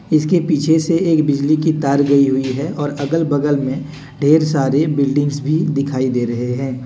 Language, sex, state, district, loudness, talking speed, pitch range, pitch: Hindi, male, Jharkhand, Deoghar, -16 LUFS, 190 wpm, 140-155 Hz, 145 Hz